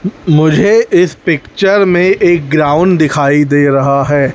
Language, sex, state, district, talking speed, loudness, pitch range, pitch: Hindi, male, Chhattisgarh, Raipur, 125 wpm, -10 LUFS, 145-185 Hz, 155 Hz